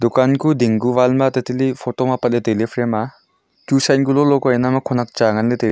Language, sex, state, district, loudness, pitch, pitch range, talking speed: Wancho, male, Arunachal Pradesh, Longding, -17 LUFS, 125 Hz, 120-135 Hz, 240 wpm